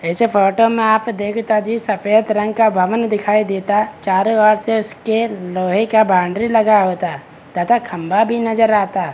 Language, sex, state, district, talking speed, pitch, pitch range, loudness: Hindi, male, Bihar, Begusarai, 170 wpm, 215 Hz, 190-225 Hz, -16 LUFS